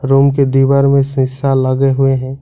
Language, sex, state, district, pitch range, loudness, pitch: Hindi, male, Jharkhand, Ranchi, 135-140 Hz, -12 LUFS, 135 Hz